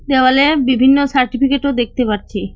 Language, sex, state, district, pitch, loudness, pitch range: Bengali, female, West Bengal, Cooch Behar, 260 Hz, -14 LUFS, 245-275 Hz